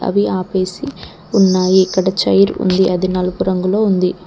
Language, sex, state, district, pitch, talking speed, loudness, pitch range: Telugu, female, Telangana, Mahabubabad, 185 Hz, 140 wpm, -15 LUFS, 185-195 Hz